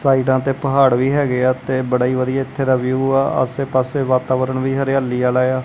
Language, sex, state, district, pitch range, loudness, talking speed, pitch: Punjabi, male, Punjab, Kapurthala, 130-135 Hz, -17 LUFS, 225 wpm, 130 Hz